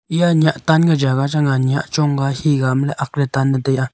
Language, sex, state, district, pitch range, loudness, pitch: Wancho, male, Arunachal Pradesh, Longding, 135-155 Hz, -17 LUFS, 140 Hz